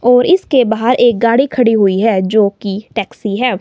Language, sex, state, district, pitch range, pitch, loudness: Hindi, female, Himachal Pradesh, Shimla, 205-250 Hz, 230 Hz, -13 LUFS